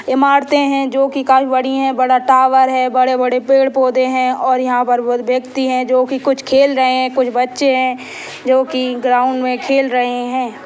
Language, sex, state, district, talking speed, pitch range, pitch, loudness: Hindi, female, Bihar, Gopalganj, 195 wpm, 255-265 Hz, 255 Hz, -14 LUFS